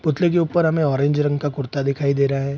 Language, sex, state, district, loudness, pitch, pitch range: Hindi, male, Bihar, Saharsa, -20 LUFS, 145 Hz, 140-160 Hz